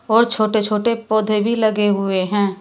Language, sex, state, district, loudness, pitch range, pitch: Hindi, female, Uttar Pradesh, Shamli, -18 LUFS, 205-220 Hz, 215 Hz